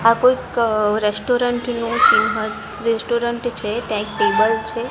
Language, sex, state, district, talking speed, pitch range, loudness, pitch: Gujarati, female, Gujarat, Gandhinagar, 135 wpm, 220-245 Hz, -19 LUFS, 230 Hz